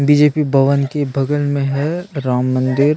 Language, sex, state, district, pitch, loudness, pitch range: Hindi, male, Chhattisgarh, Sukma, 140 Hz, -16 LUFS, 135-145 Hz